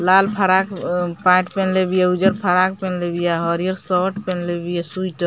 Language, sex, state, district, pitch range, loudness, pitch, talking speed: Bhojpuri, female, Bihar, Muzaffarpur, 175-190 Hz, -19 LUFS, 185 Hz, 180 wpm